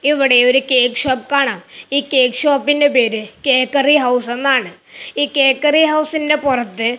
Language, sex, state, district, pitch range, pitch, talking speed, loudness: Malayalam, male, Kerala, Kasaragod, 250-290 Hz, 270 Hz, 135 wpm, -14 LUFS